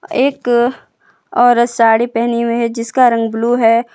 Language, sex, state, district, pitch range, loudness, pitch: Hindi, female, Jharkhand, Palamu, 230-245 Hz, -14 LUFS, 235 Hz